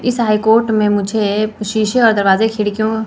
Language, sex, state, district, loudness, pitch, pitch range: Hindi, female, Chandigarh, Chandigarh, -14 LUFS, 215 Hz, 210-220 Hz